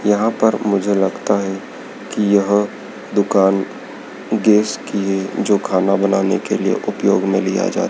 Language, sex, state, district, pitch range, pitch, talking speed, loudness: Hindi, male, Madhya Pradesh, Dhar, 95-105 Hz, 100 Hz, 150 wpm, -17 LUFS